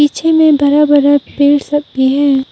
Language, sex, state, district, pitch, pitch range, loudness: Hindi, female, Arunachal Pradesh, Papum Pare, 290 Hz, 285-295 Hz, -11 LUFS